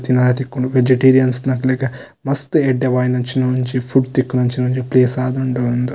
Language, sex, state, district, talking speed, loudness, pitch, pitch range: Tulu, male, Karnataka, Dakshina Kannada, 120 wpm, -16 LUFS, 130 Hz, 125-130 Hz